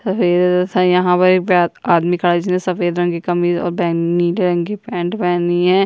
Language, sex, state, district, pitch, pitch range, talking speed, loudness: Hindi, female, Uttarakhand, Tehri Garhwal, 180 Hz, 175-185 Hz, 195 wpm, -16 LUFS